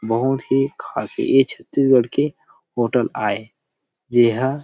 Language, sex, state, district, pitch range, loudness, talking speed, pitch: Chhattisgarhi, male, Chhattisgarh, Rajnandgaon, 120-140 Hz, -19 LUFS, 115 wpm, 130 Hz